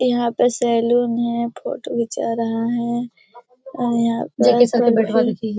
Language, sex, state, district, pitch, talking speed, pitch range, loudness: Hindi, female, Bihar, Lakhisarai, 235 Hz, 130 wpm, 230-240 Hz, -19 LUFS